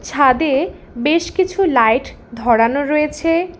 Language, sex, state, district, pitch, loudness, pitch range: Bengali, female, West Bengal, Alipurduar, 295 Hz, -16 LUFS, 245-330 Hz